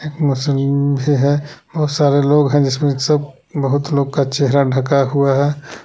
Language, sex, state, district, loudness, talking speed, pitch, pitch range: Hindi, male, Jharkhand, Palamu, -16 LUFS, 155 wpm, 140 Hz, 140-145 Hz